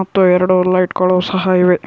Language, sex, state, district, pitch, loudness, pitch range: Kannada, female, Karnataka, Shimoga, 185 Hz, -13 LUFS, 180-185 Hz